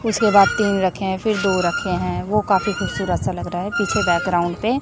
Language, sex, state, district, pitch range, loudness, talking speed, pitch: Hindi, female, Chhattisgarh, Raipur, 180-210 Hz, -19 LUFS, 235 wpm, 200 Hz